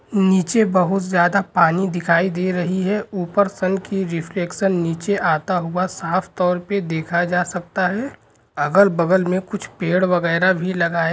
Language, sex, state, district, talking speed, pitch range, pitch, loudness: Hindi, male, Bihar, Saran, 160 wpm, 175-195 Hz, 185 Hz, -19 LUFS